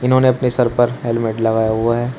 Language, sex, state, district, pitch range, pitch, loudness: Hindi, male, Uttar Pradesh, Shamli, 115-125 Hz, 120 Hz, -16 LUFS